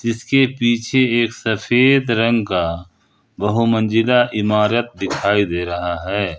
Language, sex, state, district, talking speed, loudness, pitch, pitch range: Hindi, male, Jharkhand, Ranchi, 120 wpm, -17 LUFS, 110 Hz, 100-120 Hz